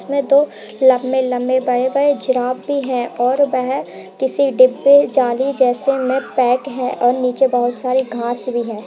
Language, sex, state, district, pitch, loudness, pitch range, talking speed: Hindi, female, Bihar, Purnia, 255 Hz, -16 LUFS, 250-270 Hz, 155 wpm